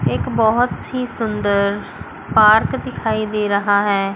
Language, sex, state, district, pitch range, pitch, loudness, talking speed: Hindi, female, Chandigarh, Chandigarh, 200-220 Hz, 210 Hz, -17 LUFS, 130 wpm